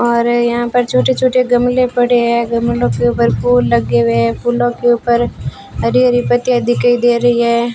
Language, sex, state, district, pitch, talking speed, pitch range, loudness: Hindi, female, Rajasthan, Bikaner, 240 Hz, 195 wpm, 235-245 Hz, -13 LUFS